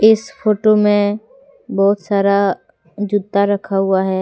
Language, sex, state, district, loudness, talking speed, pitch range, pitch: Hindi, female, Jharkhand, Deoghar, -16 LUFS, 130 wpm, 200-215 Hz, 205 Hz